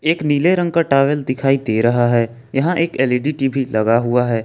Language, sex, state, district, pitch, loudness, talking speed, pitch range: Hindi, male, Jharkhand, Ranchi, 135 Hz, -17 LUFS, 215 wpm, 120-150 Hz